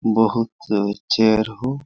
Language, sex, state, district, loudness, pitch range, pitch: Hindi, male, Jharkhand, Sahebganj, -20 LUFS, 110-115 Hz, 110 Hz